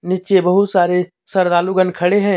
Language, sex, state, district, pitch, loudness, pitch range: Hindi, male, Jharkhand, Deoghar, 185 Hz, -15 LUFS, 180-190 Hz